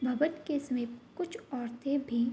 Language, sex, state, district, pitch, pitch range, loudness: Hindi, female, Bihar, Madhepura, 260 Hz, 240-305 Hz, -34 LUFS